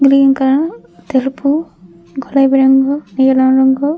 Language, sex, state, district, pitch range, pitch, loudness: Telugu, female, Andhra Pradesh, Krishna, 265-280 Hz, 270 Hz, -12 LUFS